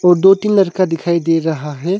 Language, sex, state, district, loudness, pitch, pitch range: Hindi, male, Arunachal Pradesh, Longding, -14 LUFS, 175 Hz, 165-190 Hz